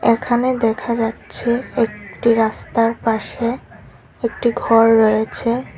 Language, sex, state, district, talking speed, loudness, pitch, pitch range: Bengali, female, Tripura, Unakoti, 95 wpm, -18 LUFS, 230 Hz, 225-240 Hz